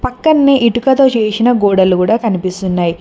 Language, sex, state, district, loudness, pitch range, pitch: Telugu, female, Telangana, Mahabubabad, -12 LUFS, 185-250 Hz, 225 Hz